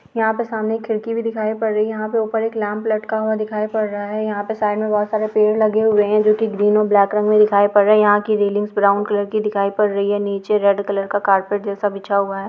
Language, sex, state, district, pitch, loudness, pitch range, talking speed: Hindi, female, Chhattisgarh, Balrampur, 210 Hz, -18 LUFS, 205-215 Hz, 295 wpm